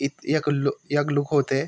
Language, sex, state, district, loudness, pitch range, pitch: Garhwali, male, Uttarakhand, Tehri Garhwal, -24 LUFS, 140-145 Hz, 145 Hz